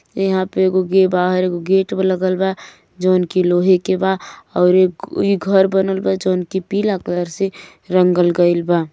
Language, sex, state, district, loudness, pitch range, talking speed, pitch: Bhojpuri, female, Uttar Pradesh, Gorakhpur, -17 LUFS, 180-190 Hz, 160 wpm, 185 Hz